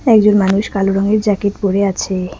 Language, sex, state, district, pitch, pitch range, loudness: Bengali, female, West Bengal, Cooch Behar, 200 Hz, 195-210 Hz, -15 LUFS